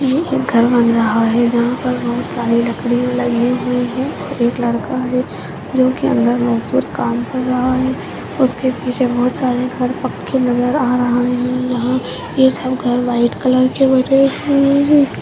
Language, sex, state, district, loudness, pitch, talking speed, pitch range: Hindi, female, Uttarakhand, Tehri Garhwal, -16 LUFS, 250 Hz, 165 wpm, 240-260 Hz